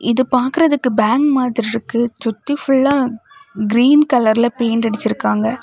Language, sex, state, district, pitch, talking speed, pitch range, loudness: Tamil, female, Tamil Nadu, Kanyakumari, 245 Hz, 130 wpm, 230-280 Hz, -16 LUFS